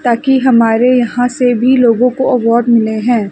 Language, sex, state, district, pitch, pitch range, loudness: Hindi, female, Chandigarh, Chandigarh, 245 Hz, 230-255 Hz, -11 LUFS